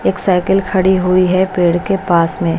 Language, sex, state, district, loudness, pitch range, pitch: Hindi, female, Bihar, West Champaran, -14 LUFS, 175-190 Hz, 185 Hz